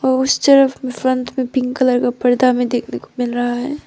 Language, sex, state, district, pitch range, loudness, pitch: Hindi, female, Arunachal Pradesh, Papum Pare, 245-260 Hz, -16 LUFS, 255 Hz